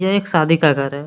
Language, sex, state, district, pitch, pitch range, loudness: Hindi, male, Jharkhand, Deoghar, 160 Hz, 145-190 Hz, -16 LUFS